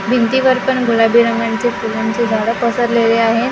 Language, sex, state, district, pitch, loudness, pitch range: Marathi, female, Maharashtra, Gondia, 235 Hz, -14 LUFS, 230-240 Hz